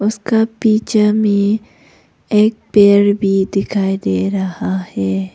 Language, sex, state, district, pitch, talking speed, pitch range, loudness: Hindi, female, Arunachal Pradesh, Papum Pare, 200 Hz, 110 wpm, 190-215 Hz, -15 LUFS